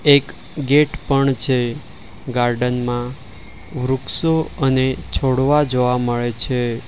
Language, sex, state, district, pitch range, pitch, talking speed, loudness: Gujarati, male, Gujarat, Valsad, 120-135 Hz, 130 Hz, 105 wpm, -18 LUFS